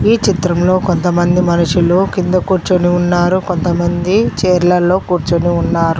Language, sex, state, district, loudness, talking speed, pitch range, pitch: Telugu, female, Telangana, Mahabubabad, -13 LUFS, 120 wpm, 175-185 Hz, 180 Hz